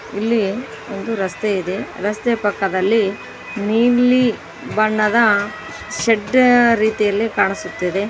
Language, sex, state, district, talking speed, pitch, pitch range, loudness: Kannada, female, Karnataka, Koppal, 80 wpm, 215 Hz, 200-230 Hz, -17 LUFS